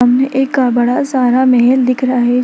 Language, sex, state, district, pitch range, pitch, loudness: Hindi, female, Bihar, Jamui, 245-260 Hz, 255 Hz, -12 LUFS